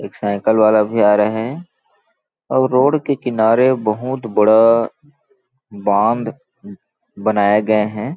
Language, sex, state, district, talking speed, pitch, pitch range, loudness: Hindi, male, Chhattisgarh, Balrampur, 110 wpm, 110 Hz, 105-130 Hz, -16 LUFS